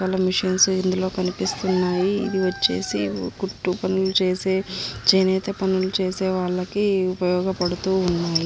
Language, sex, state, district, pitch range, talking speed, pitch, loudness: Telugu, female, Andhra Pradesh, Anantapur, 180-190 Hz, 105 wpm, 185 Hz, -22 LUFS